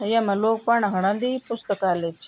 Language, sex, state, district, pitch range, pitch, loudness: Garhwali, female, Uttarakhand, Tehri Garhwal, 195-230 Hz, 210 Hz, -23 LUFS